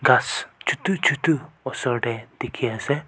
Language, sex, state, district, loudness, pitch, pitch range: Nagamese, male, Nagaland, Kohima, -24 LUFS, 135 Hz, 120-155 Hz